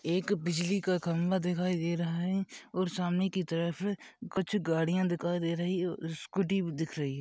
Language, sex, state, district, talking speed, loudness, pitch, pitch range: Hindi, male, Uttar Pradesh, Budaun, 200 wpm, -32 LUFS, 180 Hz, 170-190 Hz